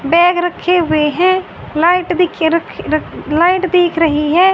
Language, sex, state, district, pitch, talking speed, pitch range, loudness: Hindi, female, Haryana, Rohtak, 345 Hz, 160 wpm, 320-360 Hz, -14 LUFS